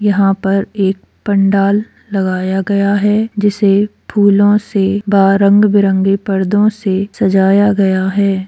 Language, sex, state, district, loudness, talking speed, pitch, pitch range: Hindi, female, Bihar, Purnia, -13 LUFS, 120 wpm, 200 Hz, 195-205 Hz